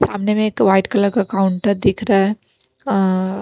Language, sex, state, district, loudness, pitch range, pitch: Hindi, female, Punjab, Pathankot, -17 LUFS, 195-210 Hz, 200 Hz